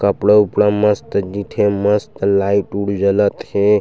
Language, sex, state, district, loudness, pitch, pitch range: Chhattisgarhi, male, Chhattisgarh, Sukma, -16 LUFS, 100 Hz, 100-105 Hz